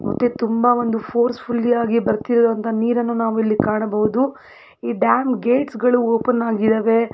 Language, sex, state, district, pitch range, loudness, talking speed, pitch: Kannada, female, Karnataka, Belgaum, 225-245 Hz, -19 LUFS, 145 wpm, 235 Hz